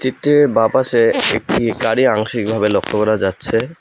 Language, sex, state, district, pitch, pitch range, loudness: Bengali, male, West Bengal, Alipurduar, 115 Hz, 110-130 Hz, -15 LUFS